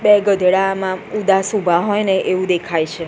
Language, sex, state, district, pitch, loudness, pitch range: Gujarati, female, Gujarat, Gandhinagar, 190 Hz, -16 LUFS, 180-200 Hz